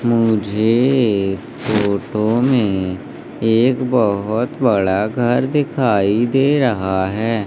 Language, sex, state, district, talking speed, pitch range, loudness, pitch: Hindi, male, Madhya Pradesh, Umaria, 95 wpm, 100-125 Hz, -17 LUFS, 110 Hz